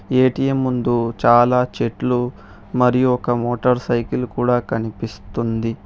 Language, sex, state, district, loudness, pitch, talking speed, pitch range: Telugu, male, Telangana, Hyderabad, -19 LUFS, 120 Hz, 115 wpm, 115-125 Hz